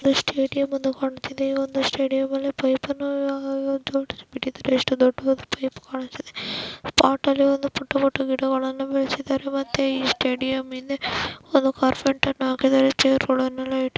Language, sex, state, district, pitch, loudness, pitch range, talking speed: Kannada, female, Karnataka, Dakshina Kannada, 270 Hz, -23 LUFS, 265-275 Hz, 135 wpm